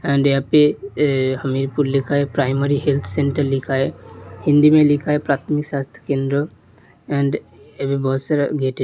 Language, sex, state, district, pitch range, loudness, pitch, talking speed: Hindi, male, Uttar Pradesh, Hamirpur, 135-145 Hz, -19 LUFS, 140 Hz, 165 wpm